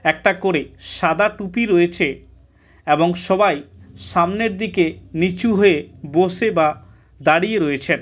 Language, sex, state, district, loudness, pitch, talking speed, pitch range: Bengali, male, West Bengal, Kolkata, -18 LUFS, 175 Hz, 110 wpm, 155-200 Hz